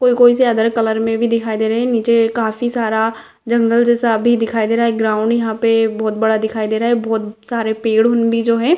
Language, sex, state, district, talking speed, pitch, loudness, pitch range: Hindi, female, Bihar, Gopalganj, 260 wpm, 230 Hz, -16 LUFS, 220-235 Hz